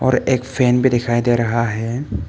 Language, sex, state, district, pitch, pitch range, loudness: Hindi, male, Arunachal Pradesh, Papum Pare, 120 Hz, 115-130 Hz, -18 LUFS